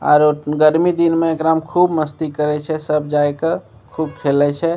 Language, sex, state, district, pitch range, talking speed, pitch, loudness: Maithili, male, Bihar, Begusarai, 150-165 Hz, 200 wpm, 155 Hz, -17 LUFS